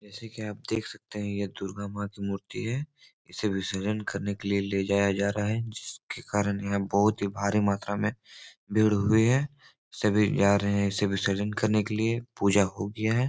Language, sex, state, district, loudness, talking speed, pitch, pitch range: Hindi, male, Bihar, Jahanabad, -28 LUFS, 210 wpm, 105 Hz, 100-110 Hz